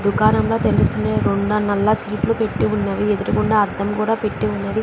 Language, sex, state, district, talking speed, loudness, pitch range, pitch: Telugu, female, Andhra Pradesh, Chittoor, 125 wpm, -19 LUFS, 200-215 Hz, 210 Hz